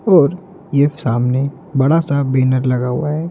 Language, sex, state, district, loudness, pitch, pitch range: Hindi, male, Madhya Pradesh, Dhar, -16 LUFS, 140 Hz, 130-165 Hz